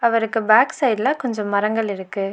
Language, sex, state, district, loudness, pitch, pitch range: Tamil, female, Tamil Nadu, Nilgiris, -19 LUFS, 220 Hz, 200-230 Hz